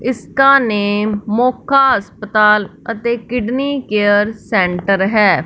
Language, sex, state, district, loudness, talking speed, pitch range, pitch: Hindi, female, Punjab, Fazilka, -14 LUFS, 100 wpm, 205-250 Hz, 215 Hz